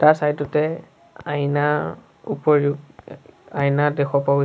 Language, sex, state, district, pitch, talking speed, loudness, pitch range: Assamese, male, Assam, Sonitpur, 145 Hz, 135 wpm, -21 LUFS, 140-150 Hz